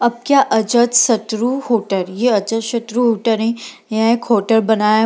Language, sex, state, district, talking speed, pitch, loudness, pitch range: Hindi, female, Bihar, Gaya, 180 wpm, 230 Hz, -16 LUFS, 220-240 Hz